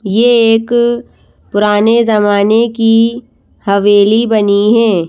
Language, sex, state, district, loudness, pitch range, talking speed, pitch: Hindi, female, Madhya Pradesh, Bhopal, -10 LUFS, 205-230 Hz, 95 wpm, 225 Hz